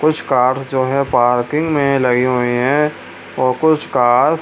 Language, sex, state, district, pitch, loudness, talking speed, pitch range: Hindi, male, Bihar, Supaul, 130 Hz, -15 LUFS, 175 wpm, 125-150 Hz